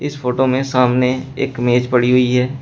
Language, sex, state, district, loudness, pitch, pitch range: Hindi, male, Uttar Pradesh, Shamli, -16 LUFS, 125 Hz, 125-135 Hz